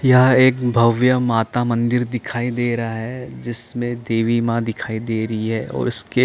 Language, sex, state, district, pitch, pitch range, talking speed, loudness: Hindi, male, Chandigarh, Chandigarh, 120 Hz, 115-125 Hz, 175 wpm, -19 LUFS